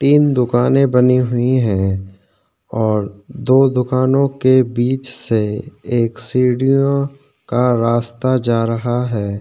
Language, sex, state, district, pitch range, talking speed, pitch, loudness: Hindi, male, Uttarakhand, Tehri Garhwal, 115-130 Hz, 115 wpm, 125 Hz, -16 LUFS